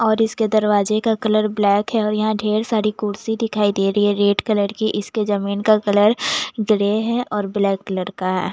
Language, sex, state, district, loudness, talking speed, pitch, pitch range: Hindi, female, Bihar, West Champaran, -19 LUFS, 220 wpm, 210 Hz, 205-215 Hz